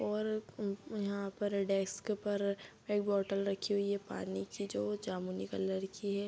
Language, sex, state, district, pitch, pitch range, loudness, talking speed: Hindi, female, Bihar, Bhagalpur, 200 Hz, 190-205 Hz, -37 LUFS, 180 wpm